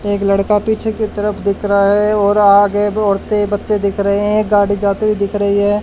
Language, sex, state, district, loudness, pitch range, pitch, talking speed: Hindi, male, Haryana, Charkhi Dadri, -14 LUFS, 200-210 Hz, 205 Hz, 225 wpm